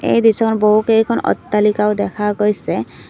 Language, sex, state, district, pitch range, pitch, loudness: Assamese, female, Assam, Kamrup Metropolitan, 210-220 Hz, 210 Hz, -15 LUFS